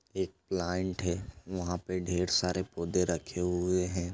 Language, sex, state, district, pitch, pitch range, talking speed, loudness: Hindi, male, Chhattisgarh, Sarguja, 90 Hz, 90-95 Hz, 160 wpm, -32 LUFS